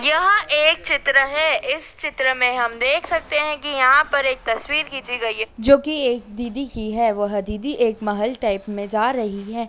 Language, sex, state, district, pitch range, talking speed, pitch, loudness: Hindi, female, Madhya Pradesh, Dhar, 225-295 Hz, 210 wpm, 255 Hz, -19 LUFS